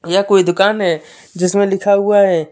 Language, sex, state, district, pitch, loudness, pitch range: Hindi, male, Jharkhand, Deoghar, 195 Hz, -14 LUFS, 180-200 Hz